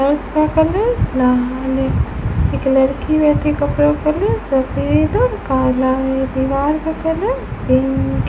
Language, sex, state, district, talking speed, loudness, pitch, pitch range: Hindi, female, Rajasthan, Bikaner, 140 wpm, -16 LUFS, 265 Hz, 250-310 Hz